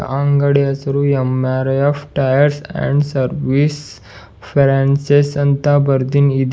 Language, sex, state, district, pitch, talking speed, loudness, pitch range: Kannada, male, Karnataka, Bidar, 140 Hz, 90 wpm, -15 LUFS, 135-145 Hz